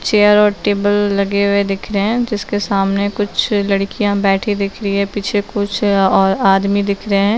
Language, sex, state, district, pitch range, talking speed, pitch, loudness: Hindi, female, Maharashtra, Aurangabad, 200-205 Hz, 195 wpm, 200 Hz, -15 LUFS